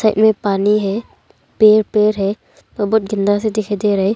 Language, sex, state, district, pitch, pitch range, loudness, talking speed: Hindi, female, Arunachal Pradesh, Longding, 210 Hz, 205-215 Hz, -16 LUFS, 200 wpm